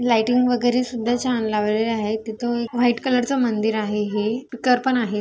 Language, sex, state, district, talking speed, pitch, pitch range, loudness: Marathi, female, Maharashtra, Dhule, 185 wpm, 240 Hz, 220-245 Hz, -21 LUFS